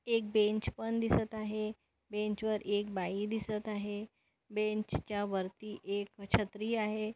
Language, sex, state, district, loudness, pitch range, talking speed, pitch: Marathi, female, Maharashtra, Nagpur, -35 LUFS, 205-215 Hz, 135 wpm, 210 Hz